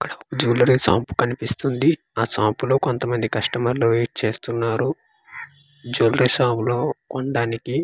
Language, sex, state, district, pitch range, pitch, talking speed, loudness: Telugu, male, Andhra Pradesh, Manyam, 115-135 Hz, 120 Hz, 130 wpm, -21 LUFS